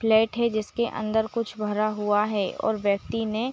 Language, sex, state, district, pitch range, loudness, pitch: Hindi, female, Chhattisgarh, Bilaspur, 210-225 Hz, -25 LUFS, 220 Hz